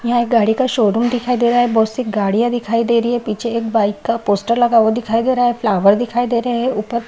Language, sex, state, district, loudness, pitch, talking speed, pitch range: Hindi, female, Bihar, Madhepura, -16 LUFS, 235 Hz, 280 wpm, 220-240 Hz